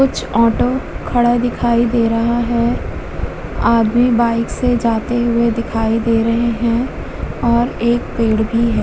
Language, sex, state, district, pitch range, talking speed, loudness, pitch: Hindi, female, Uttar Pradesh, Muzaffarnagar, 230-240 Hz, 145 wpm, -16 LUFS, 235 Hz